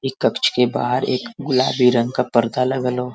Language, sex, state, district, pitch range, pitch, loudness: Bhojpuri, male, Uttar Pradesh, Varanasi, 125-130 Hz, 125 Hz, -19 LUFS